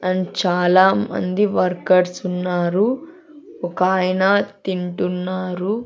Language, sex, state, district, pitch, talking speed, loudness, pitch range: Telugu, female, Andhra Pradesh, Sri Satya Sai, 185 Hz, 60 wpm, -19 LUFS, 180-200 Hz